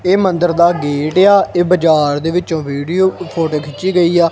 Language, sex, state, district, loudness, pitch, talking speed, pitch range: Punjabi, male, Punjab, Kapurthala, -14 LUFS, 170 Hz, 195 wpm, 155-185 Hz